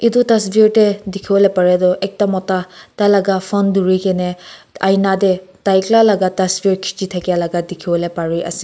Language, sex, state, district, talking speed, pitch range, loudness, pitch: Nagamese, female, Nagaland, Kohima, 180 wpm, 180-200 Hz, -15 LUFS, 190 Hz